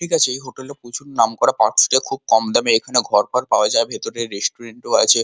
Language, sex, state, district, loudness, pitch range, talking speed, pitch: Bengali, male, West Bengal, Kolkata, -17 LUFS, 115-130 Hz, 150 wpm, 120 Hz